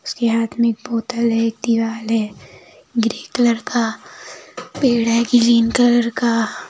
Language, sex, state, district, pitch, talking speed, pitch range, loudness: Hindi, female, Bihar, Katihar, 235 Hz, 150 wpm, 230-240 Hz, -18 LUFS